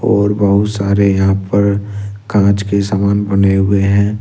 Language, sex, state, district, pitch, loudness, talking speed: Hindi, male, Jharkhand, Ranchi, 100 Hz, -13 LUFS, 155 wpm